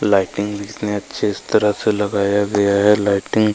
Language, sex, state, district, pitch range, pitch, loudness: Hindi, male, Chhattisgarh, Kabirdham, 100-105 Hz, 100 Hz, -18 LUFS